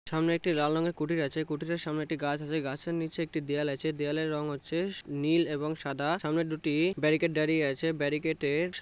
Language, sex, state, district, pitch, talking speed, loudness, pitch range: Bengali, male, West Bengal, North 24 Parganas, 155 Hz, 210 wpm, -31 LUFS, 150-165 Hz